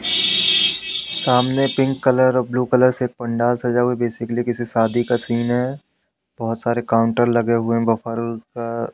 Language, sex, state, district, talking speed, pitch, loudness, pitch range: Hindi, male, Madhya Pradesh, Katni, 160 wpm, 120 Hz, -19 LUFS, 115-130 Hz